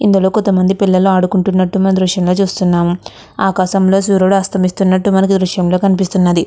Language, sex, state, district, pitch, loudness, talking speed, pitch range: Telugu, female, Andhra Pradesh, Guntur, 190 Hz, -13 LUFS, 140 wpm, 185-195 Hz